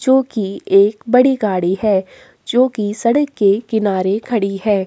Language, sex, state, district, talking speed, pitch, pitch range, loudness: Hindi, female, Uttarakhand, Tehri Garhwal, 160 wpm, 210 Hz, 195-245 Hz, -16 LUFS